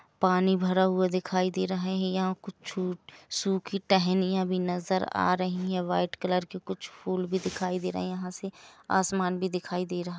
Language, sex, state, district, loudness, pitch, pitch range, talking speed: Hindi, female, Jharkhand, Jamtara, -29 LUFS, 185 Hz, 180-190 Hz, 200 wpm